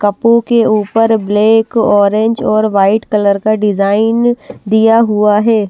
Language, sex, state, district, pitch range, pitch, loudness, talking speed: Hindi, female, Bihar, West Champaran, 210-225 Hz, 215 Hz, -11 LUFS, 135 wpm